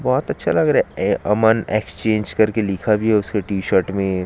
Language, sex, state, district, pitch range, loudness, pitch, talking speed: Hindi, male, Chhattisgarh, Jashpur, 100-110 Hz, -19 LUFS, 105 Hz, 210 wpm